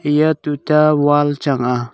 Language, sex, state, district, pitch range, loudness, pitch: Wancho, male, Arunachal Pradesh, Longding, 140-150 Hz, -15 LUFS, 145 Hz